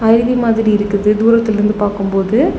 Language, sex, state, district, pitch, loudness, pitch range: Tamil, female, Tamil Nadu, Nilgiris, 215 Hz, -14 LUFS, 205-230 Hz